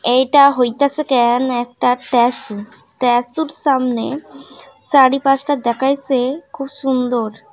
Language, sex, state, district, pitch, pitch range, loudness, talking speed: Bengali, female, West Bengal, Paschim Medinipur, 260 Hz, 245-280 Hz, -16 LUFS, 95 wpm